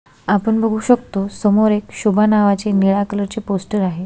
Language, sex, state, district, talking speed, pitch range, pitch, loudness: Marathi, female, Maharashtra, Solapur, 165 wpm, 200-215 Hz, 205 Hz, -17 LUFS